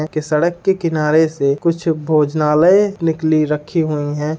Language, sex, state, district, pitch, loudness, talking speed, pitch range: Hindi, male, Uttar Pradesh, Gorakhpur, 155 Hz, -16 LUFS, 135 wpm, 150-165 Hz